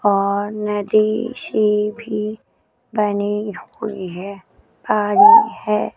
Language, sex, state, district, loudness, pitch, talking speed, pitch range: Hindi, female, Chandigarh, Chandigarh, -18 LUFS, 210 Hz, 90 wpm, 205-215 Hz